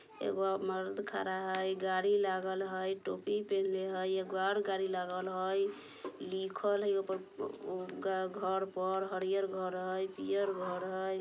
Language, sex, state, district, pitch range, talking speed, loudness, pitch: Bajjika, female, Bihar, Vaishali, 185-195 Hz, 145 wpm, -36 LUFS, 190 Hz